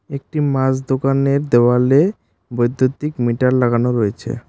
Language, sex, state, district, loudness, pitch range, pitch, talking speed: Bengali, male, West Bengal, Cooch Behar, -17 LUFS, 120-140 Hz, 130 Hz, 105 wpm